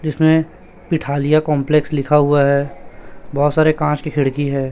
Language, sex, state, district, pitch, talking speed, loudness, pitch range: Hindi, male, Chhattisgarh, Raipur, 150 Hz, 150 wpm, -16 LUFS, 140-155 Hz